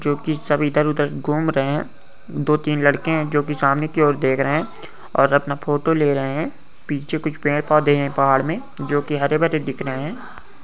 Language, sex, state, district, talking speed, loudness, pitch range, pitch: Hindi, male, Goa, North and South Goa, 210 wpm, -20 LUFS, 140-155 Hz, 145 Hz